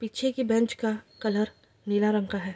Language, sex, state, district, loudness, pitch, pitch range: Hindi, female, Bihar, East Champaran, -28 LUFS, 215 Hz, 210-230 Hz